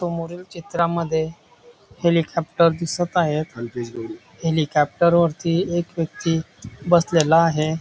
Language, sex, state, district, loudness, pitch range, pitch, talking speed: Marathi, male, Maharashtra, Dhule, -21 LUFS, 160-170 Hz, 165 Hz, 85 wpm